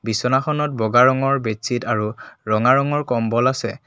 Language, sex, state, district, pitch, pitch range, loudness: Assamese, male, Assam, Kamrup Metropolitan, 125 Hz, 110-135 Hz, -19 LUFS